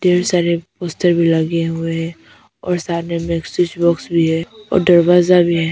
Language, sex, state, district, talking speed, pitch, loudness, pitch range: Hindi, female, Arunachal Pradesh, Papum Pare, 190 wpm, 170 Hz, -16 LUFS, 165-180 Hz